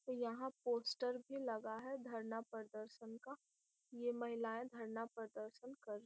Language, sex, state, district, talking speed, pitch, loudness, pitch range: Hindi, female, Bihar, Gopalganj, 140 wpm, 235 Hz, -47 LUFS, 225-250 Hz